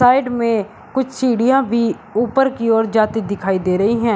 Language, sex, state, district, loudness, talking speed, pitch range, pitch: Hindi, male, Uttar Pradesh, Shamli, -17 LUFS, 190 wpm, 215-250 Hz, 230 Hz